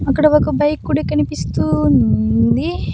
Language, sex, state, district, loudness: Telugu, female, Andhra Pradesh, Annamaya, -16 LUFS